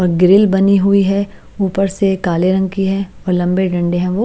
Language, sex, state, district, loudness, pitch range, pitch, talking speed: Hindi, female, Himachal Pradesh, Shimla, -14 LUFS, 180-195 Hz, 190 Hz, 210 wpm